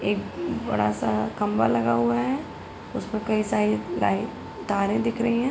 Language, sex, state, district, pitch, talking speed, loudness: Hindi, female, Uttar Pradesh, Hamirpur, 200 Hz, 165 wpm, -25 LUFS